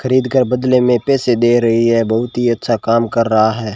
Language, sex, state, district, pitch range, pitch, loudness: Hindi, male, Rajasthan, Bikaner, 115-125 Hz, 120 Hz, -14 LUFS